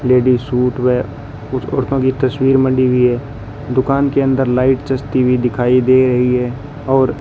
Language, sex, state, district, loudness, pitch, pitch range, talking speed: Hindi, male, Rajasthan, Bikaner, -15 LUFS, 130 Hz, 125-135 Hz, 175 wpm